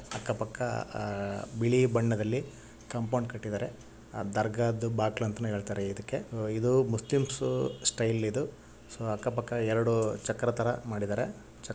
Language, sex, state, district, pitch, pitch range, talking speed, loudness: Kannada, male, Karnataka, Raichur, 115 Hz, 105-120 Hz, 110 wpm, -31 LUFS